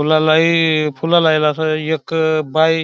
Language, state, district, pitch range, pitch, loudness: Bhili, Maharashtra, Dhule, 155-160 Hz, 160 Hz, -15 LUFS